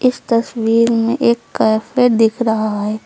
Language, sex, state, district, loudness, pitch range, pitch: Hindi, female, Uttar Pradesh, Lucknow, -15 LUFS, 220-235 Hz, 230 Hz